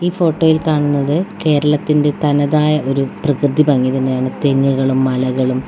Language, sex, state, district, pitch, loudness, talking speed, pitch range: Malayalam, female, Kerala, Wayanad, 145 Hz, -15 LUFS, 115 wpm, 135-150 Hz